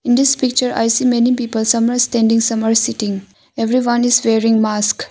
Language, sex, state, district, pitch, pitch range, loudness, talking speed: English, female, Arunachal Pradesh, Longding, 230 Hz, 225-245 Hz, -15 LUFS, 200 wpm